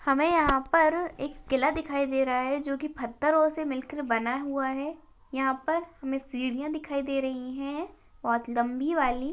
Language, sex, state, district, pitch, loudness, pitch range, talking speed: Hindi, female, Maharashtra, Dhule, 275 Hz, -28 LUFS, 265-310 Hz, 180 wpm